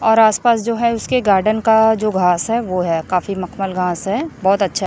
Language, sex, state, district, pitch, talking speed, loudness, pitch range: Hindi, female, Chhattisgarh, Raipur, 200 Hz, 235 wpm, -16 LUFS, 185-225 Hz